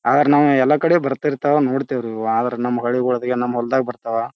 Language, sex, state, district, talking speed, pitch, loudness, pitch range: Kannada, male, Karnataka, Bijapur, 205 wpm, 125 Hz, -18 LUFS, 120-145 Hz